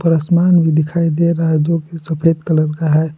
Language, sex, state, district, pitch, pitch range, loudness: Hindi, male, Jharkhand, Palamu, 165 Hz, 155-170 Hz, -15 LUFS